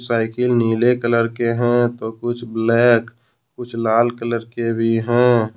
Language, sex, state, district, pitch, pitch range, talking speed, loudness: Hindi, male, Jharkhand, Ranchi, 115 Hz, 115-120 Hz, 150 wpm, -18 LUFS